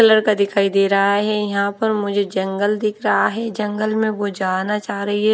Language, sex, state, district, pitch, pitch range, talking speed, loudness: Hindi, female, Odisha, Nuapada, 205 Hz, 200-215 Hz, 225 wpm, -19 LUFS